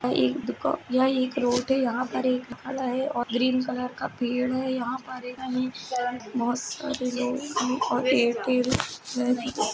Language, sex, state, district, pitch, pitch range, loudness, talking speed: Hindi, female, Uttar Pradesh, Jalaun, 255 Hz, 245-260 Hz, -27 LUFS, 105 wpm